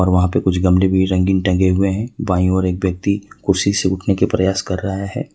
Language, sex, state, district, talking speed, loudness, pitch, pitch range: Hindi, male, Jharkhand, Ranchi, 235 wpm, -17 LUFS, 95 Hz, 95-100 Hz